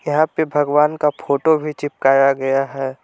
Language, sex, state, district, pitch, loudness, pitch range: Hindi, male, Jharkhand, Palamu, 145 Hz, -17 LUFS, 135-150 Hz